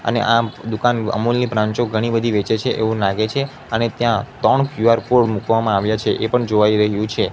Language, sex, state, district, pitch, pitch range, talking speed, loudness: Gujarati, male, Gujarat, Gandhinagar, 115 Hz, 110-120 Hz, 220 wpm, -18 LUFS